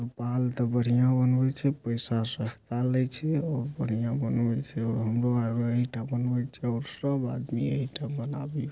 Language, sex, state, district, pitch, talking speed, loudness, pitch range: Angika, male, Bihar, Supaul, 125 Hz, 165 wpm, -29 LUFS, 120-135 Hz